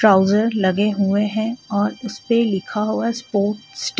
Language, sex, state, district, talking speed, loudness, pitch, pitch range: Hindi, female, Jharkhand, Ranchi, 165 wpm, -20 LUFS, 210 Hz, 200-225 Hz